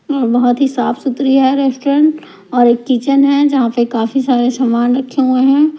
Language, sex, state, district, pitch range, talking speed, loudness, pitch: Hindi, female, Punjab, Pathankot, 245-275 Hz, 185 wpm, -13 LUFS, 265 Hz